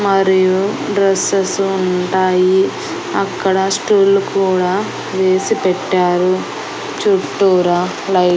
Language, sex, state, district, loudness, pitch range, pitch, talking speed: Telugu, female, Andhra Pradesh, Annamaya, -15 LUFS, 185-195 Hz, 190 Hz, 80 wpm